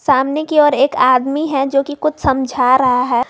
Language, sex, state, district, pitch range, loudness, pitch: Hindi, female, Jharkhand, Garhwa, 255-295 Hz, -14 LUFS, 275 Hz